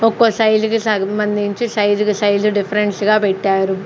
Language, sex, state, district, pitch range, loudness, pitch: Telugu, female, Andhra Pradesh, Sri Satya Sai, 200-215 Hz, -16 LUFS, 210 Hz